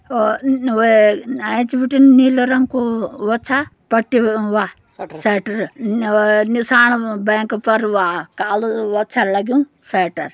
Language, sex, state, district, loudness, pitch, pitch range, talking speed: Garhwali, female, Uttarakhand, Uttarkashi, -16 LUFS, 225 Hz, 210-250 Hz, 145 wpm